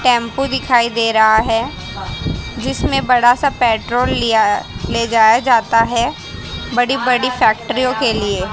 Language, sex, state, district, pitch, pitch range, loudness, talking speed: Hindi, female, Haryana, Rohtak, 235 Hz, 225-250 Hz, -15 LUFS, 135 wpm